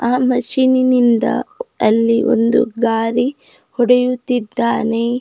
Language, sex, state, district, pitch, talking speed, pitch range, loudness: Kannada, female, Karnataka, Bidar, 240 Hz, 70 wpm, 230-255 Hz, -15 LUFS